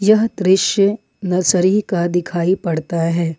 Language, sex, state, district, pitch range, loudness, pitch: Hindi, female, Jharkhand, Ranchi, 170-195 Hz, -17 LUFS, 180 Hz